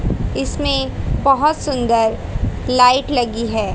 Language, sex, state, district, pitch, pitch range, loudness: Hindi, female, Haryana, Charkhi Dadri, 250 Hz, 230-275 Hz, -17 LUFS